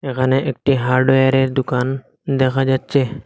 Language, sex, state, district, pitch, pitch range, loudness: Bengali, male, Assam, Hailakandi, 130 Hz, 130-135 Hz, -17 LUFS